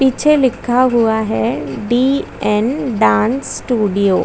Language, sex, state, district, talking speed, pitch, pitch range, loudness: Hindi, female, Chhattisgarh, Bastar, 85 wpm, 240 Hz, 210-260 Hz, -15 LUFS